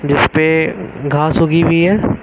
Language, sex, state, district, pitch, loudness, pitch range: Hindi, male, Uttar Pradesh, Lucknow, 160 Hz, -13 LUFS, 150-165 Hz